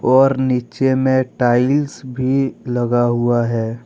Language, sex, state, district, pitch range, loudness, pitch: Hindi, male, Jharkhand, Deoghar, 120-130 Hz, -17 LUFS, 125 Hz